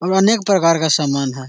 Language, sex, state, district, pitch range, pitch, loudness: Magahi, male, Bihar, Jahanabad, 140-190 Hz, 165 Hz, -15 LUFS